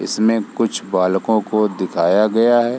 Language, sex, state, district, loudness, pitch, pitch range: Hindi, male, Bihar, East Champaran, -17 LUFS, 110 Hz, 95-115 Hz